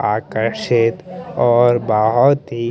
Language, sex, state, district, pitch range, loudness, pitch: Hindi, male, Chandigarh, Chandigarh, 110-120 Hz, -16 LUFS, 115 Hz